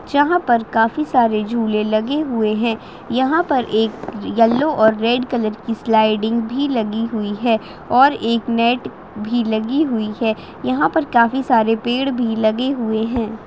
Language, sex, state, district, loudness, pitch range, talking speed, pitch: Hindi, female, Bihar, Saharsa, -18 LUFS, 220-255 Hz, 180 wpm, 230 Hz